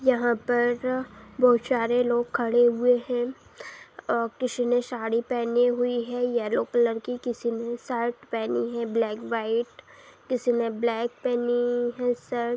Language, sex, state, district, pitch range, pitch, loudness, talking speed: Hindi, female, Bihar, Saharsa, 235-245 Hz, 240 Hz, -26 LUFS, 155 wpm